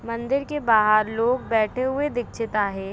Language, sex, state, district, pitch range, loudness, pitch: Hindi, female, Maharashtra, Pune, 215-255 Hz, -22 LUFS, 230 Hz